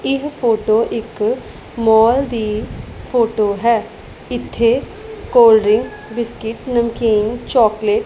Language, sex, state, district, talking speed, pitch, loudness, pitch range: Punjabi, female, Punjab, Pathankot, 95 wpm, 230 Hz, -16 LUFS, 220-255 Hz